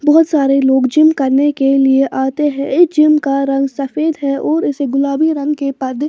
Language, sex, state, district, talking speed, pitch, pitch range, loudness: Hindi, female, Bihar, Patna, 205 wpm, 280 Hz, 275-300 Hz, -13 LUFS